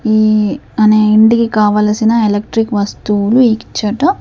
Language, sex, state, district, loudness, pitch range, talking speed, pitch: Telugu, female, Andhra Pradesh, Sri Satya Sai, -12 LUFS, 210-225 Hz, 85 wpm, 215 Hz